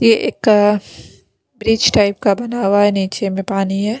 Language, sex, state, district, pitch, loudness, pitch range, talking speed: Hindi, female, Punjab, Pathankot, 205 Hz, -15 LUFS, 195-225 Hz, 180 wpm